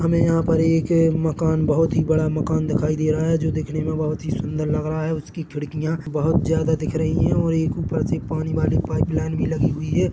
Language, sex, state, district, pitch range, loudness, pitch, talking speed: Hindi, male, Chhattisgarh, Bilaspur, 155-160 Hz, -21 LUFS, 160 Hz, 235 wpm